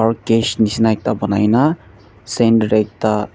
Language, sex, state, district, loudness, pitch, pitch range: Nagamese, male, Nagaland, Dimapur, -16 LUFS, 110 Hz, 105-115 Hz